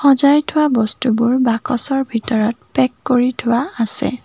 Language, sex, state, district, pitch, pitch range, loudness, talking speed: Assamese, female, Assam, Kamrup Metropolitan, 245 Hz, 230-270 Hz, -16 LUFS, 125 wpm